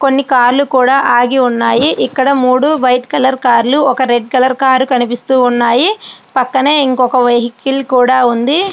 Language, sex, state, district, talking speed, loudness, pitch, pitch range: Telugu, female, Andhra Pradesh, Srikakulam, 160 wpm, -11 LUFS, 255 Hz, 245-270 Hz